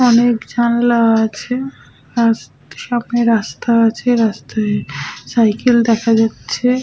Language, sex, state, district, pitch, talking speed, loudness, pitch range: Bengali, female, West Bengal, Malda, 235 Hz, 95 wpm, -15 LUFS, 225-240 Hz